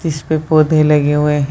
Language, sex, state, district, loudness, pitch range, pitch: Hindi, female, Bihar, Jahanabad, -13 LUFS, 150-155 Hz, 150 Hz